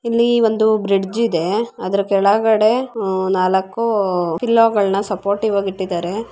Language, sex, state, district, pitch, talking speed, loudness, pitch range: Kannada, female, Karnataka, Raichur, 205 Hz, 125 wpm, -17 LUFS, 190-225 Hz